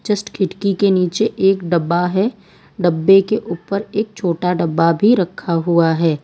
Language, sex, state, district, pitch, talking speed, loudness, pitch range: Hindi, female, Gujarat, Valsad, 185 Hz, 165 wpm, -17 LUFS, 170-200 Hz